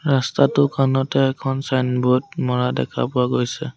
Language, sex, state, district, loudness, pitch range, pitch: Assamese, male, Assam, Sonitpur, -20 LUFS, 125-140 Hz, 135 Hz